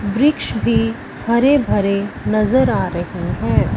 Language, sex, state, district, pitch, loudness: Hindi, female, Punjab, Fazilka, 205 Hz, -17 LUFS